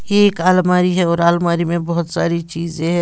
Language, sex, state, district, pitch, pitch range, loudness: Hindi, female, Bihar, West Champaran, 170 Hz, 170-180 Hz, -16 LUFS